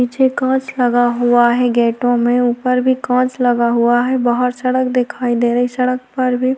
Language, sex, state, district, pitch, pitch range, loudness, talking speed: Hindi, female, Chhattisgarh, Korba, 245 Hz, 240-255 Hz, -15 LUFS, 210 wpm